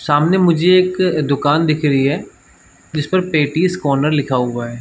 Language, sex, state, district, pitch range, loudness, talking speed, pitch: Hindi, male, Uttar Pradesh, Jalaun, 135-170 Hz, -16 LUFS, 175 wpm, 150 Hz